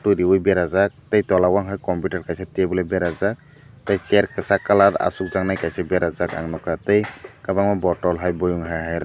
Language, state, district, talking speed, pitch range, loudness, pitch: Kokborok, Tripura, Dhalai, 170 wpm, 90-100 Hz, -21 LUFS, 95 Hz